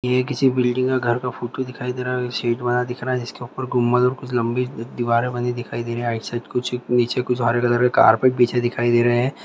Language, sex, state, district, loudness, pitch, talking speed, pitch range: Hindi, male, Bihar, Vaishali, -21 LUFS, 125 Hz, 255 wpm, 120-125 Hz